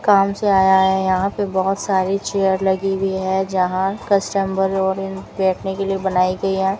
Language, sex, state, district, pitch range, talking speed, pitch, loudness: Hindi, female, Rajasthan, Bikaner, 190-195 Hz, 185 wpm, 190 Hz, -19 LUFS